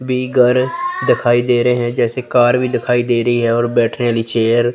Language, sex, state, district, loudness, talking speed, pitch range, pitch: Hindi, female, Chandigarh, Chandigarh, -15 LUFS, 215 wpm, 120-125 Hz, 120 Hz